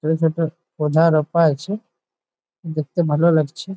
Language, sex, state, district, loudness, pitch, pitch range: Bengali, male, West Bengal, Jhargram, -19 LUFS, 165 Hz, 155-170 Hz